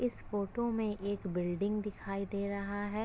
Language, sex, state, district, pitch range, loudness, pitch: Hindi, female, Uttar Pradesh, Etah, 200-210 Hz, -36 LUFS, 205 Hz